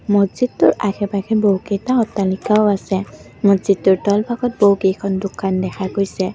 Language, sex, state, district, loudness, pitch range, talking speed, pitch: Assamese, female, Assam, Kamrup Metropolitan, -17 LUFS, 190-210 Hz, 125 wpm, 200 Hz